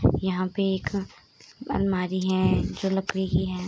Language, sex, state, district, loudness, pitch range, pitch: Hindi, female, Bihar, Darbhanga, -26 LUFS, 185-190 Hz, 185 Hz